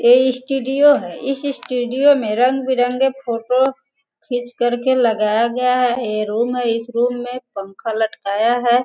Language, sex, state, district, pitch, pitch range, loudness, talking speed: Hindi, female, Bihar, Sitamarhi, 245 Hz, 235-265 Hz, -18 LUFS, 170 wpm